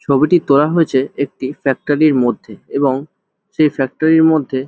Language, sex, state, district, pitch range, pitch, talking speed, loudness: Bengali, male, West Bengal, Jalpaiguri, 135-160 Hz, 145 Hz, 155 wpm, -15 LUFS